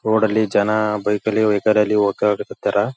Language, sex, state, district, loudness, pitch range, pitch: Kannada, male, Karnataka, Belgaum, -18 LUFS, 105-110 Hz, 105 Hz